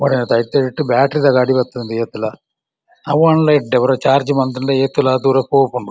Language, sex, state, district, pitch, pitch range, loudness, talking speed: Tulu, male, Karnataka, Dakshina Kannada, 135 Hz, 125-140 Hz, -15 LUFS, 120 wpm